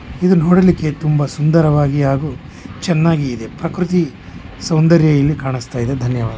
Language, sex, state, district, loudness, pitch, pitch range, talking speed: Kannada, male, Karnataka, Chamarajanagar, -15 LUFS, 150 Hz, 130-165 Hz, 115 wpm